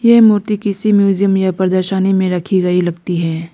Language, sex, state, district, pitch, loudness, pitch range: Hindi, female, Arunachal Pradesh, Lower Dibang Valley, 190 Hz, -14 LUFS, 180-205 Hz